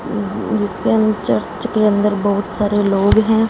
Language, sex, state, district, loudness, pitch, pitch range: Hindi, female, Punjab, Fazilka, -17 LUFS, 210 Hz, 205-215 Hz